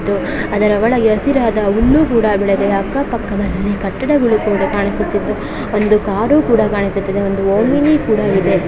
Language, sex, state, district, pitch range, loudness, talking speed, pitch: Kannada, female, Karnataka, Bijapur, 200-235 Hz, -15 LUFS, 130 wpm, 210 Hz